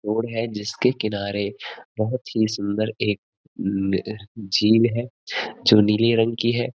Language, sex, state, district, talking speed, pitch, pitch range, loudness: Hindi, male, Uttarakhand, Uttarkashi, 140 wpm, 110 Hz, 105-115 Hz, -22 LUFS